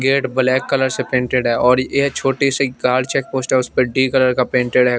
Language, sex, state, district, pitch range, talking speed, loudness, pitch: Hindi, male, Chandigarh, Chandigarh, 125-135 Hz, 230 wpm, -17 LUFS, 130 Hz